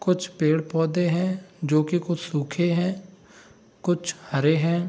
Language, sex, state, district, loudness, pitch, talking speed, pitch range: Hindi, male, Bihar, Saharsa, -24 LUFS, 175 Hz, 145 wpm, 160-180 Hz